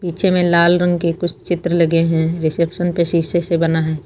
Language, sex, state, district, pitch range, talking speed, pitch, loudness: Hindi, female, Uttar Pradesh, Lucknow, 165-175 Hz, 220 wpm, 170 Hz, -16 LUFS